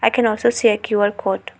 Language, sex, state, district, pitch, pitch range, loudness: English, female, Arunachal Pradesh, Lower Dibang Valley, 215 Hz, 205-235 Hz, -18 LUFS